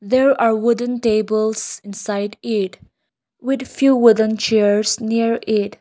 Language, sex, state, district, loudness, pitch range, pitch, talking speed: English, female, Nagaland, Kohima, -18 LUFS, 210-235 Hz, 220 Hz, 125 wpm